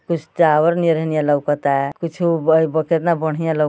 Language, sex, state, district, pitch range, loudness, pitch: Bhojpuri, male, Uttar Pradesh, Ghazipur, 150-165 Hz, -18 LUFS, 160 Hz